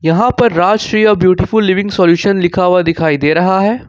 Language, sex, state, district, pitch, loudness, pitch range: Hindi, male, Jharkhand, Ranchi, 185 Hz, -11 LUFS, 170-210 Hz